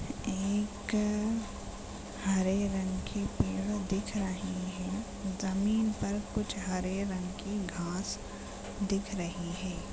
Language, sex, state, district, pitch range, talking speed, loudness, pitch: Hindi, female, Chhattisgarh, Jashpur, 185-205 Hz, 110 wpm, -34 LUFS, 195 Hz